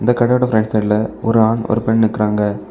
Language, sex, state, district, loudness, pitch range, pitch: Tamil, male, Tamil Nadu, Kanyakumari, -16 LUFS, 105-115 Hz, 110 Hz